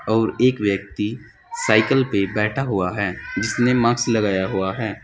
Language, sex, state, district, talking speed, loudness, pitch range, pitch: Hindi, male, Uttar Pradesh, Saharanpur, 155 wpm, -20 LUFS, 100-120 Hz, 110 Hz